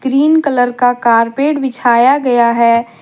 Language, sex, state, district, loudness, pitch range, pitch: Hindi, female, Jharkhand, Deoghar, -12 LUFS, 235-275 Hz, 245 Hz